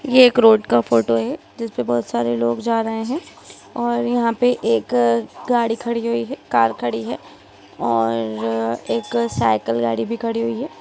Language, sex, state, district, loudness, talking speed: Hindi, female, Bihar, Sitamarhi, -19 LUFS, 165 wpm